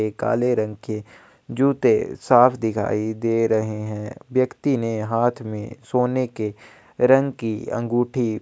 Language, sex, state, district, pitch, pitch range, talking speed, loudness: Hindi, male, Chhattisgarh, Kabirdham, 115 Hz, 110-125 Hz, 130 wpm, -22 LUFS